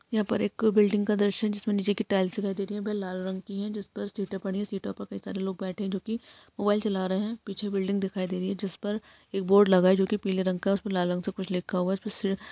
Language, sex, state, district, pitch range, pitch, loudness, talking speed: Hindi, female, Maharashtra, Aurangabad, 190-210 Hz, 200 Hz, -28 LUFS, 285 wpm